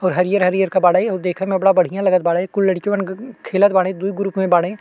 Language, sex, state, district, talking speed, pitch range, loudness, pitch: Bhojpuri, male, Uttar Pradesh, Deoria, 250 wpm, 185-195 Hz, -17 LUFS, 190 Hz